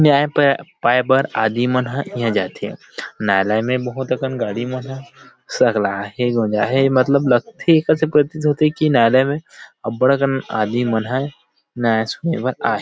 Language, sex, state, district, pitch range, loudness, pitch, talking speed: Chhattisgarhi, male, Chhattisgarh, Rajnandgaon, 115-140 Hz, -18 LUFS, 130 Hz, 160 wpm